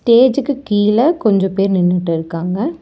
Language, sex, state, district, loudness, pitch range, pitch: Tamil, male, Tamil Nadu, Chennai, -15 LUFS, 180-260 Hz, 205 Hz